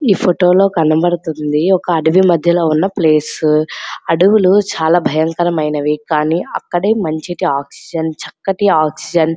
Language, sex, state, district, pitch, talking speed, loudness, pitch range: Telugu, female, Andhra Pradesh, Srikakulam, 165 Hz, 115 wpm, -14 LUFS, 155-180 Hz